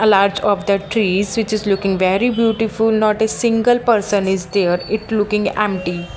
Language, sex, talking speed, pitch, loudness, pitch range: English, female, 195 wpm, 210 Hz, -17 LUFS, 195-220 Hz